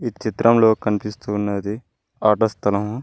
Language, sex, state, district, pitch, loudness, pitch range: Telugu, male, Telangana, Mahabubabad, 105 Hz, -20 LUFS, 105-115 Hz